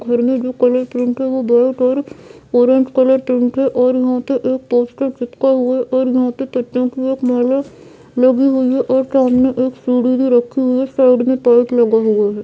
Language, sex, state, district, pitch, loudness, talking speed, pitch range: Hindi, female, Bihar, Purnia, 255 Hz, -15 LUFS, 185 wpm, 245-260 Hz